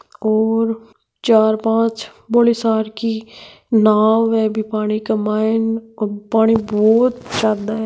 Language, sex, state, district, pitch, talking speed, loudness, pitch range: Marwari, female, Rajasthan, Nagaur, 220 Hz, 120 wpm, -17 LUFS, 215-225 Hz